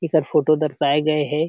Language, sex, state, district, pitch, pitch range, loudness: Chhattisgarhi, male, Chhattisgarh, Sarguja, 155 Hz, 150-155 Hz, -19 LUFS